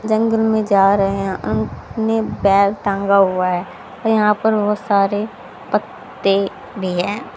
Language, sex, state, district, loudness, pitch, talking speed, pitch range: Hindi, female, Haryana, Charkhi Dadri, -17 LUFS, 200 Hz, 145 wpm, 195-220 Hz